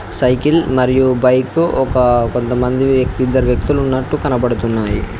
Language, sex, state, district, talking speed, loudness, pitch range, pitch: Telugu, male, Telangana, Mahabubabad, 115 wpm, -15 LUFS, 120-130 Hz, 125 Hz